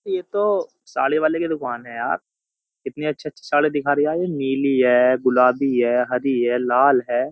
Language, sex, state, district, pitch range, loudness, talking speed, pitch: Hindi, male, Uttar Pradesh, Jyotiba Phule Nagar, 125-160 Hz, -20 LUFS, 190 wpm, 140 Hz